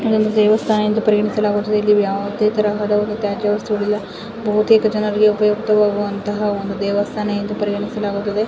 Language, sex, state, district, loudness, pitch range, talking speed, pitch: Kannada, female, Karnataka, Mysore, -18 LUFS, 205-215 Hz, 120 wpm, 210 Hz